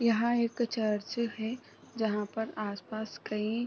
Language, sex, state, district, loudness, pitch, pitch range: Hindi, female, Chhattisgarh, Raigarh, -33 LUFS, 220 Hz, 215-235 Hz